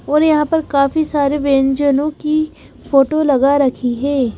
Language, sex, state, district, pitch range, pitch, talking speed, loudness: Hindi, female, Madhya Pradesh, Bhopal, 275-305 Hz, 285 Hz, 150 wpm, -15 LUFS